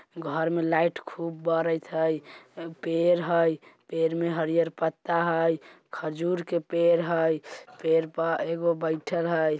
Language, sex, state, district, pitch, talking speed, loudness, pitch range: Bajjika, male, Bihar, Vaishali, 165 Hz, 135 wpm, -27 LUFS, 160-170 Hz